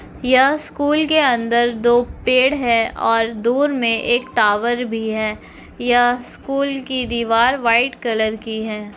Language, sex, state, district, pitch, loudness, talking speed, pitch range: Hindi, female, Bihar, Lakhisarai, 240 Hz, -17 LUFS, 155 wpm, 225-260 Hz